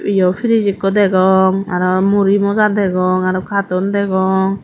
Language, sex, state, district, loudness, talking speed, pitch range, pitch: Chakma, female, Tripura, Dhalai, -14 LUFS, 130 wpm, 185-200 Hz, 195 Hz